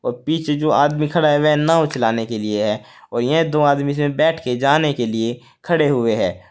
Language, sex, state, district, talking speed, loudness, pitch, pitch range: Hindi, male, Uttar Pradesh, Saharanpur, 220 wpm, -18 LUFS, 145 Hz, 120-150 Hz